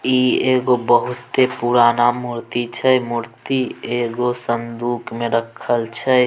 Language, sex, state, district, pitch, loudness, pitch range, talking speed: Maithili, male, Bihar, Samastipur, 120 Hz, -19 LUFS, 120-125 Hz, 115 wpm